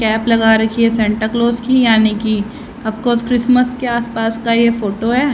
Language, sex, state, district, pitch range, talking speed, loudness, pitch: Hindi, female, Haryana, Rohtak, 220-240 Hz, 200 wpm, -15 LUFS, 230 Hz